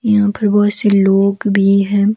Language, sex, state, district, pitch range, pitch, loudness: Hindi, female, Himachal Pradesh, Shimla, 200-205 Hz, 205 Hz, -13 LUFS